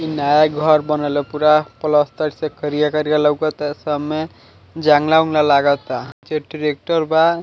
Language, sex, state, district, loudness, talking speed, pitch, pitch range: Bhojpuri, male, Bihar, Muzaffarpur, -17 LUFS, 155 wpm, 150 Hz, 145-155 Hz